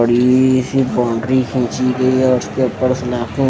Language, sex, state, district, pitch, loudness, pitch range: Hindi, male, Delhi, New Delhi, 130 Hz, -15 LUFS, 120-130 Hz